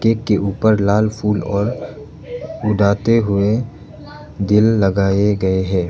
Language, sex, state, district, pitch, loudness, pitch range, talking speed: Hindi, male, Arunachal Pradesh, Lower Dibang Valley, 105 Hz, -16 LUFS, 100-110 Hz, 120 wpm